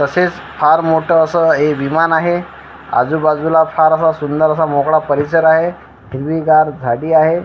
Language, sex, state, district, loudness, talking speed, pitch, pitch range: Marathi, female, Maharashtra, Washim, -13 LUFS, 145 wpm, 160 Hz, 150-160 Hz